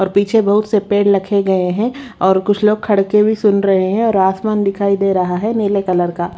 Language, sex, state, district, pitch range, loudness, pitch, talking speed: Hindi, female, Haryana, Rohtak, 190-210 Hz, -15 LUFS, 200 Hz, 235 wpm